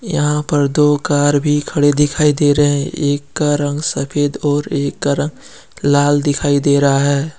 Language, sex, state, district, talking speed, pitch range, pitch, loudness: Hindi, male, Jharkhand, Deoghar, 185 wpm, 145-150 Hz, 145 Hz, -15 LUFS